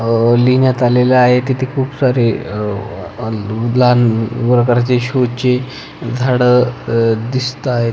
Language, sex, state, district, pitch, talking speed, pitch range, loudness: Marathi, male, Maharashtra, Pune, 125 Hz, 115 wpm, 115-125 Hz, -14 LUFS